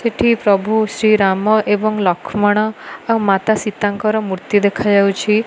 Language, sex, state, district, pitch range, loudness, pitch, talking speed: Odia, female, Odisha, Malkangiri, 200-220 Hz, -15 LUFS, 210 Hz, 130 wpm